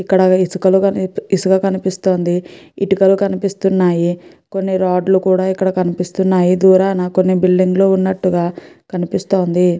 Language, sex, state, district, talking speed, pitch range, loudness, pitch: Telugu, female, Andhra Pradesh, Guntur, 100 wpm, 180-190 Hz, -15 LUFS, 185 Hz